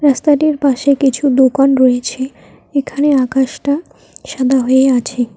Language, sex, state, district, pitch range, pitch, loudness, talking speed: Bengali, female, West Bengal, Cooch Behar, 255-285 Hz, 270 Hz, -13 LUFS, 110 wpm